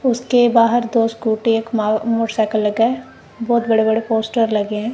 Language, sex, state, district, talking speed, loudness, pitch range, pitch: Hindi, female, Punjab, Kapurthala, 180 wpm, -17 LUFS, 220-235 Hz, 225 Hz